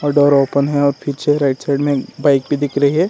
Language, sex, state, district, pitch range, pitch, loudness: Hindi, male, Karnataka, Bangalore, 140-145 Hz, 145 Hz, -16 LUFS